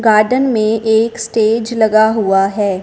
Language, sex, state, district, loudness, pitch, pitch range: Hindi, female, Punjab, Fazilka, -13 LUFS, 220 Hz, 215-230 Hz